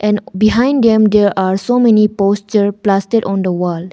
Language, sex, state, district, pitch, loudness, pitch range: English, female, Arunachal Pradesh, Longding, 210 Hz, -13 LUFS, 195-220 Hz